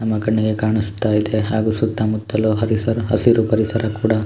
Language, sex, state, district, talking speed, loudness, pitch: Kannada, male, Karnataka, Shimoga, 140 wpm, -18 LUFS, 110 Hz